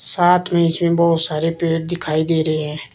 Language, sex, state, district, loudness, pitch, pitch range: Hindi, female, Himachal Pradesh, Shimla, -18 LUFS, 165 Hz, 155-170 Hz